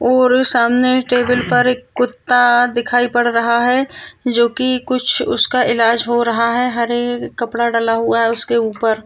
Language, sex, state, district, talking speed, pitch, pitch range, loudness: Hindi, female, Uttarakhand, Tehri Garhwal, 165 wpm, 245 Hz, 235-250 Hz, -15 LUFS